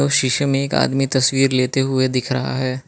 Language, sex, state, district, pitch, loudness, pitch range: Hindi, male, Manipur, Imphal West, 135 Hz, -18 LUFS, 130-135 Hz